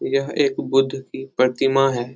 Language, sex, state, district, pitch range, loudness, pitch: Hindi, male, Bihar, Jahanabad, 130-135 Hz, -20 LUFS, 135 Hz